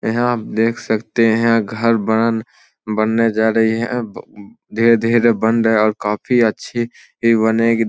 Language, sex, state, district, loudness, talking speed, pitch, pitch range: Hindi, male, Bihar, Samastipur, -16 LUFS, 175 wpm, 115 Hz, 110-115 Hz